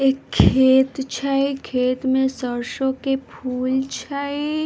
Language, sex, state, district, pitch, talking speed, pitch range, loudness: Maithili, female, Bihar, Madhepura, 265 Hz, 130 wpm, 260-275 Hz, -21 LUFS